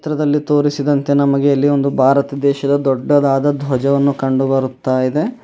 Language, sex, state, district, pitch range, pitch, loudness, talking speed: Kannada, male, Karnataka, Bidar, 135-145 Hz, 140 Hz, -15 LUFS, 120 wpm